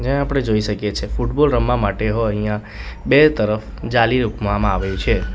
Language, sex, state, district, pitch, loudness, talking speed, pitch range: Gujarati, male, Gujarat, Valsad, 110 Hz, -18 LUFS, 170 wpm, 105-125 Hz